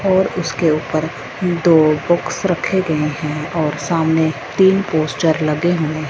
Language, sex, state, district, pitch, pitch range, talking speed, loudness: Hindi, female, Punjab, Fazilka, 160 Hz, 155-175 Hz, 135 wpm, -17 LUFS